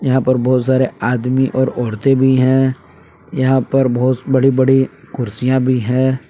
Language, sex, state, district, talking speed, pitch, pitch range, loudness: Hindi, male, Jharkhand, Palamu, 160 wpm, 130 Hz, 125-130 Hz, -15 LUFS